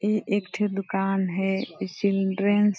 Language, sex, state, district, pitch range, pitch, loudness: Hindi, female, Chhattisgarh, Balrampur, 195-205 Hz, 195 Hz, -26 LUFS